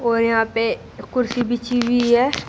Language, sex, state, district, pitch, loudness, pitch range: Hindi, female, Uttar Pradesh, Shamli, 240 Hz, -20 LUFS, 230-245 Hz